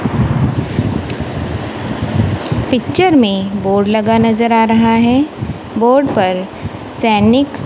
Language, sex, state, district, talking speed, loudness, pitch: Hindi, female, Punjab, Kapurthala, 85 wpm, -14 LUFS, 205 Hz